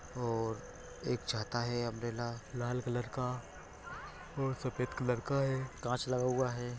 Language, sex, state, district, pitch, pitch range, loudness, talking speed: Hindi, male, Chhattisgarh, Bilaspur, 125 Hz, 120-125 Hz, -37 LUFS, 140 wpm